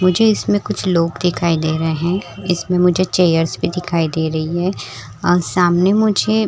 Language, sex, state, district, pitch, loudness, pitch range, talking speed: Hindi, female, Chhattisgarh, Rajnandgaon, 175 Hz, -17 LUFS, 165-185 Hz, 175 wpm